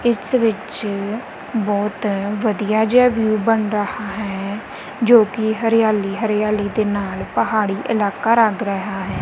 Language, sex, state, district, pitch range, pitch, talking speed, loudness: Punjabi, female, Punjab, Kapurthala, 205-225 Hz, 215 Hz, 130 wpm, -19 LUFS